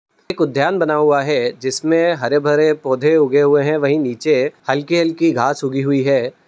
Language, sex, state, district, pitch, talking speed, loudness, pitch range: Hindi, male, Uttar Pradesh, Budaun, 145 Hz, 165 wpm, -16 LUFS, 135-155 Hz